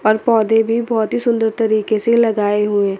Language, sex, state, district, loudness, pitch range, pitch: Hindi, female, Chandigarh, Chandigarh, -16 LUFS, 215-230 Hz, 220 Hz